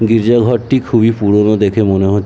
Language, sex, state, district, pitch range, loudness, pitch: Bengali, male, West Bengal, Jhargram, 105-120 Hz, -12 LUFS, 110 Hz